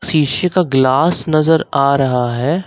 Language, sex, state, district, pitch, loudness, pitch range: Hindi, male, Uttar Pradesh, Lucknow, 155 Hz, -14 LUFS, 135-170 Hz